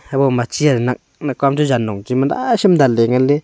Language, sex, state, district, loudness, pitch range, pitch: Wancho, male, Arunachal Pradesh, Longding, -16 LUFS, 125-150 Hz, 135 Hz